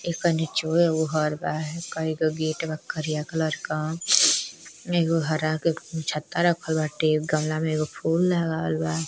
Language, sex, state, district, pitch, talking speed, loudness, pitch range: Bhojpuri, female, Uttar Pradesh, Deoria, 160 Hz, 160 wpm, -25 LUFS, 155-165 Hz